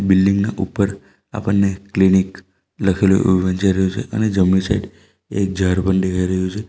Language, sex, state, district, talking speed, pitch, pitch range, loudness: Gujarati, male, Gujarat, Valsad, 170 wpm, 95 Hz, 95-100 Hz, -18 LUFS